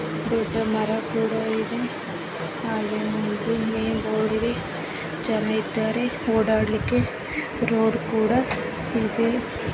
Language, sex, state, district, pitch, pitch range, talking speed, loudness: Kannada, female, Karnataka, Mysore, 220 Hz, 215-225 Hz, 80 wpm, -25 LUFS